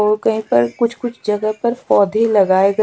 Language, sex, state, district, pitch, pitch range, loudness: Hindi, female, Chhattisgarh, Raipur, 215 Hz, 200-235 Hz, -16 LUFS